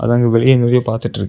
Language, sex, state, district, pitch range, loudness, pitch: Tamil, male, Tamil Nadu, Kanyakumari, 115-125 Hz, -13 LUFS, 120 Hz